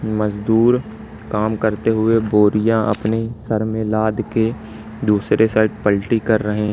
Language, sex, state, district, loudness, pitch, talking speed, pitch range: Hindi, male, Madhya Pradesh, Katni, -18 LUFS, 110 Hz, 135 wpm, 105-110 Hz